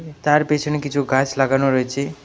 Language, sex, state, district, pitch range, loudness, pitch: Bengali, male, West Bengal, Alipurduar, 135-150 Hz, -19 LUFS, 140 Hz